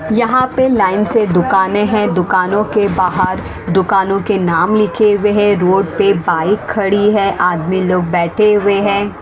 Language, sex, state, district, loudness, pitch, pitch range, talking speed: Hindi, female, Haryana, Rohtak, -13 LUFS, 200 Hz, 185-210 Hz, 165 wpm